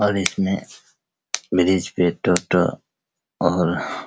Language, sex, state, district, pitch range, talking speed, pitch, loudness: Hindi, male, Bihar, Araria, 90-100 Hz, 60 wpm, 95 Hz, -21 LUFS